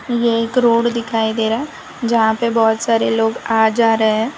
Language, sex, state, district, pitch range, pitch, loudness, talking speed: Hindi, female, Gujarat, Valsad, 225-235 Hz, 230 Hz, -16 LUFS, 220 wpm